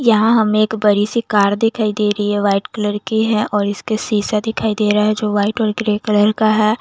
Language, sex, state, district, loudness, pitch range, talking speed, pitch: Hindi, female, Chandigarh, Chandigarh, -16 LUFS, 205-220 Hz, 240 wpm, 215 Hz